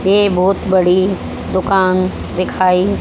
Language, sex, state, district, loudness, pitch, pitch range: Hindi, female, Haryana, Jhajjar, -15 LUFS, 185 Hz, 185-195 Hz